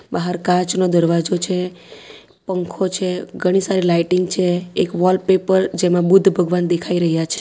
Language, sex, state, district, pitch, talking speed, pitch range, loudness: Gujarati, female, Gujarat, Valsad, 180 Hz, 145 wpm, 175-185 Hz, -17 LUFS